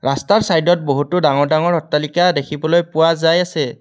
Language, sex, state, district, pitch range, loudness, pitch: Assamese, male, Assam, Kamrup Metropolitan, 150-175 Hz, -16 LUFS, 165 Hz